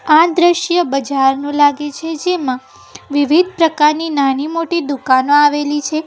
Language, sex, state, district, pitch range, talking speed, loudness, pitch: Gujarati, female, Gujarat, Valsad, 275-330 Hz, 140 wpm, -14 LUFS, 295 Hz